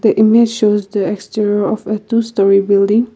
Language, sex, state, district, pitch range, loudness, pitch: English, female, Nagaland, Kohima, 200-225 Hz, -14 LUFS, 210 Hz